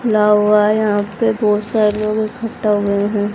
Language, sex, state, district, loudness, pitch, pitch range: Hindi, female, Haryana, Rohtak, -16 LUFS, 210 Hz, 210-215 Hz